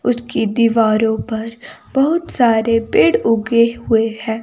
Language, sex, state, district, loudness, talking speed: Hindi, male, Himachal Pradesh, Shimla, -16 LUFS, 120 wpm